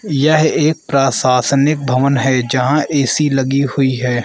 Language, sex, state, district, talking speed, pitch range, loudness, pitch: Hindi, male, Arunachal Pradesh, Lower Dibang Valley, 140 wpm, 130-150 Hz, -14 LUFS, 140 Hz